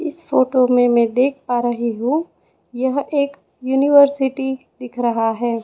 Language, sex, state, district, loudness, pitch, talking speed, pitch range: Hindi, female, Chhattisgarh, Raipur, -18 LUFS, 255 Hz, 150 wpm, 240-280 Hz